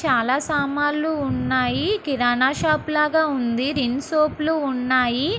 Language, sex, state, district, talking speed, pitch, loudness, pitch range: Telugu, female, Andhra Pradesh, Guntur, 110 wpm, 285 Hz, -21 LUFS, 255-305 Hz